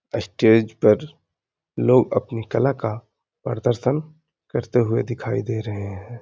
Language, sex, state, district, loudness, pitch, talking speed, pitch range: Hindi, male, Uttar Pradesh, Hamirpur, -21 LUFS, 115 Hz, 125 wpm, 110-130 Hz